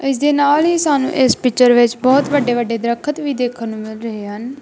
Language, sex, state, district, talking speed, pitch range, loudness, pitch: Punjabi, female, Punjab, Kapurthala, 220 wpm, 235-285 Hz, -16 LUFS, 255 Hz